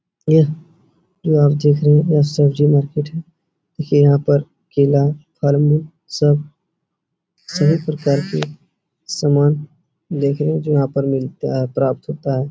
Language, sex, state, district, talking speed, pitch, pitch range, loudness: Hindi, male, Uttar Pradesh, Etah, 140 wpm, 150 Hz, 145-165 Hz, -17 LUFS